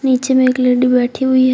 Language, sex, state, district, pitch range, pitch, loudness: Hindi, female, Jharkhand, Deoghar, 250-260 Hz, 255 Hz, -14 LUFS